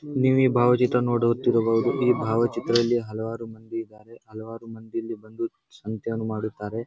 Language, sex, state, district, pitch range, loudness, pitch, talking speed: Kannada, male, Karnataka, Bijapur, 110-120 Hz, -24 LUFS, 115 Hz, 150 wpm